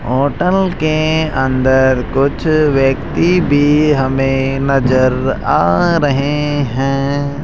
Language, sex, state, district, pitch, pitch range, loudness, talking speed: Hindi, male, Rajasthan, Jaipur, 140 Hz, 130-155 Hz, -14 LUFS, 90 wpm